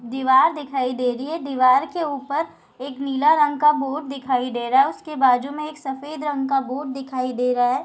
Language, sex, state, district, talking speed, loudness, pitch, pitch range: Hindi, female, Bihar, Darbhanga, 220 wpm, -21 LUFS, 270 Hz, 255-295 Hz